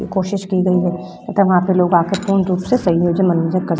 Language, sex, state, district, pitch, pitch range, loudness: Hindi, female, Bihar, Vaishali, 185 Hz, 180-195 Hz, -16 LUFS